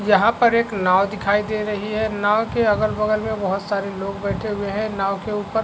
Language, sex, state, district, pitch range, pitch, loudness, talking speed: Hindi, male, Chhattisgarh, Raigarh, 200-215 Hz, 210 Hz, -21 LUFS, 235 wpm